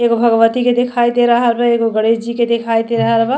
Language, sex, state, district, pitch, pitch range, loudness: Bhojpuri, female, Uttar Pradesh, Deoria, 235 Hz, 230-240 Hz, -14 LUFS